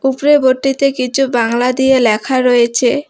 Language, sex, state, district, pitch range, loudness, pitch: Bengali, female, West Bengal, Alipurduar, 245-270 Hz, -13 LUFS, 260 Hz